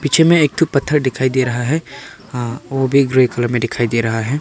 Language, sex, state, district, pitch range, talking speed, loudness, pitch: Hindi, male, Arunachal Pradesh, Papum Pare, 120-145 Hz, 260 wpm, -16 LUFS, 130 Hz